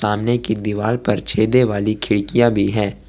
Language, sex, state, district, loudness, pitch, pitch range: Hindi, male, Jharkhand, Ranchi, -18 LUFS, 110 Hz, 105-120 Hz